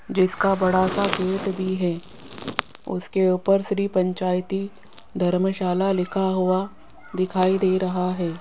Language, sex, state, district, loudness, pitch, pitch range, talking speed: Hindi, female, Rajasthan, Jaipur, -23 LUFS, 185 Hz, 185-195 Hz, 120 wpm